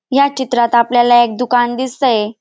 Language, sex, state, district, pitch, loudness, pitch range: Marathi, female, Maharashtra, Dhule, 240 Hz, -13 LUFS, 235-255 Hz